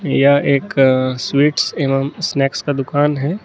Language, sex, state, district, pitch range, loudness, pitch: Hindi, male, Jharkhand, Garhwa, 135-145 Hz, -16 LUFS, 140 Hz